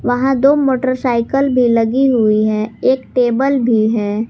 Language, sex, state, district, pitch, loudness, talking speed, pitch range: Hindi, female, Jharkhand, Garhwa, 245 Hz, -14 LUFS, 155 wpm, 225-265 Hz